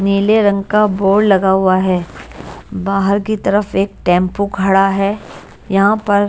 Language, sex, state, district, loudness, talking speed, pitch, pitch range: Hindi, female, Bihar, West Champaran, -14 LUFS, 160 wpm, 195 Hz, 195-205 Hz